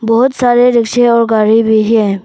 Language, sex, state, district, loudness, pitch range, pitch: Hindi, female, Arunachal Pradesh, Papum Pare, -10 LUFS, 220-245 Hz, 225 Hz